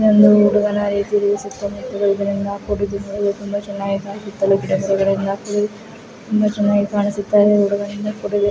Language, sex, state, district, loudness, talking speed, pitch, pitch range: Kannada, female, Karnataka, Raichur, -18 LUFS, 140 wpm, 205 Hz, 200-205 Hz